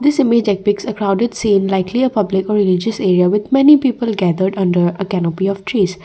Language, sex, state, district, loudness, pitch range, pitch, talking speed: English, female, Assam, Kamrup Metropolitan, -15 LUFS, 190-230 Hz, 200 Hz, 120 wpm